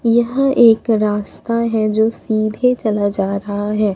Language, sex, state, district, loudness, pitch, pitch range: Hindi, female, Bihar, Katihar, -16 LUFS, 220 Hz, 210-230 Hz